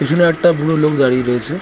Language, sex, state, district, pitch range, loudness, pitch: Bengali, female, West Bengal, North 24 Parganas, 135-170 Hz, -14 LUFS, 150 Hz